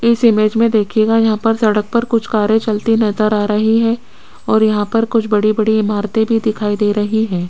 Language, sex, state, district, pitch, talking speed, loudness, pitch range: Hindi, female, Rajasthan, Jaipur, 220 Hz, 210 wpm, -14 LUFS, 210-225 Hz